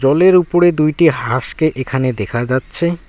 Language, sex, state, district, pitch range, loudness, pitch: Bengali, male, West Bengal, Alipurduar, 130-170 Hz, -15 LUFS, 155 Hz